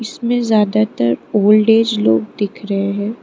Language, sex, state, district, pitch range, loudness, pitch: Hindi, female, Arunachal Pradesh, Lower Dibang Valley, 200-220 Hz, -15 LUFS, 210 Hz